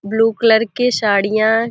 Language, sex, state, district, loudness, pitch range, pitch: Hindi, female, Uttar Pradesh, Deoria, -15 LUFS, 215-230 Hz, 225 Hz